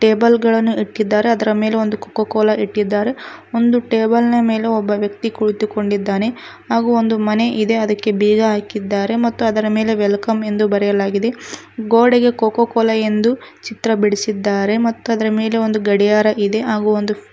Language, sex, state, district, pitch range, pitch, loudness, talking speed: Kannada, female, Karnataka, Koppal, 210-230 Hz, 220 Hz, -16 LUFS, 150 wpm